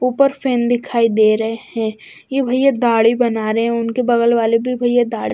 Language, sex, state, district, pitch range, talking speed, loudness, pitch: Hindi, female, Bihar, West Champaran, 225-250 Hz, 215 wpm, -16 LUFS, 235 Hz